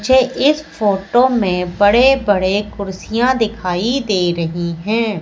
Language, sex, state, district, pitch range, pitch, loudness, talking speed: Hindi, female, Madhya Pradesh, Katni, 185-250 Hz, 210 Hz, -16 LUFS, 125 wpm